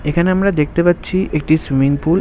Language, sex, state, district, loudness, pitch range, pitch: Bengali, male, West Bengal, Kolkata, -16 LUFS, 150-180 Hz, 160 Hz